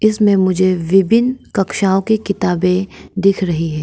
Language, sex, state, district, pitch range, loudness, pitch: Hindi, female, Arunachal Pradesh, Lower Dibang Valley, 180-200 Hz, -15 LUFS, 190 Hz